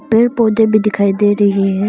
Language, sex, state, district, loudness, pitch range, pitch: Hindi, female, Arunachal Pradesh, Longding, -13 LUFS, 200-225 Hz, 210 Hz